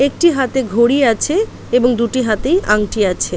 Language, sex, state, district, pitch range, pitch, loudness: Bengali, female, West Bengal, Paschim Medinipur, 220-275 Hz, 250 Hz, -15 LUFS